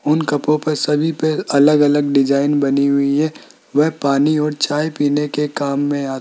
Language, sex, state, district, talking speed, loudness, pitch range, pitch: Hindi, male, Rajasthan, Jaipur, 205 wpm, -17 LUFS, 140-150 Hz, 145 Hz